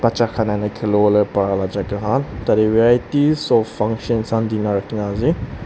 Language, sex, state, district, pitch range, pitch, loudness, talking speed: Nagamese, male, Nagaland, Dimapur, 105-115 Hz, 110 Hz, -18 LUFS, 140 wpm